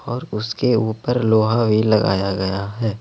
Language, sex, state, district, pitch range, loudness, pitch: Hindi, male, Jharkhand, Ranchi, 105-120 Hz, -19 LUFS, 110 Hz